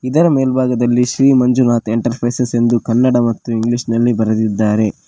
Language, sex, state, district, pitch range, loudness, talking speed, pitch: Kannada, male, Karnataka, Koppal, 115-125 Hz, -14 LUFS, 130 wpm, 120 Hz